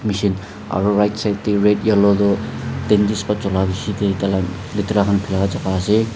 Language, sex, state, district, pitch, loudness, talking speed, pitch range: Nagamese, male, Nagaland, Dimapur, 100 Hz, -18 LUFS, 185 wpm, 100-105 Hz